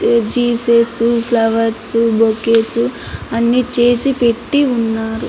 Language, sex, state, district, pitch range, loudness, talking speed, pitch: Telugu, female, Andhra Pradesh, Anantapur, 225-240 Hz, -14 LUFS, 80 wpm, 235 Hz